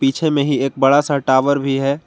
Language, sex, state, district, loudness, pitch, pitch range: Hindi, male, Jharkhand, Garhwa, -16 LUFS, 140 Hz, 135-145 Hz